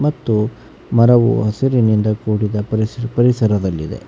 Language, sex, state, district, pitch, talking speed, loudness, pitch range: Kannada, male, Karnataka, Bangalore, 110 Hz, 90 wpm, -16 LUFS, 105-120 Hz